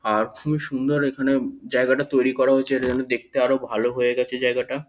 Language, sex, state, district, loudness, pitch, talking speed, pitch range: Bengali, male, West Bengal, North 24 Parganas, -22 LUFS, 130 Hz, 195 wpm, 125-135 Hz